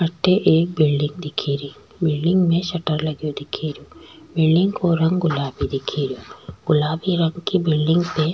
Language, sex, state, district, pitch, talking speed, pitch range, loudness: Rajasthani, female, Rajasthan, Churu, 160 Hz, 145 wpm, 150-175 Hz, -20 LUFS